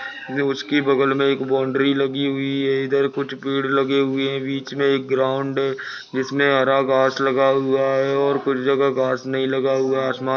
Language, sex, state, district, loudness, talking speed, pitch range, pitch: Hindi, male, Maharashtra, Nagpur, -20 LUFS, 195 wpm, 135-140 Hz, 135 Hz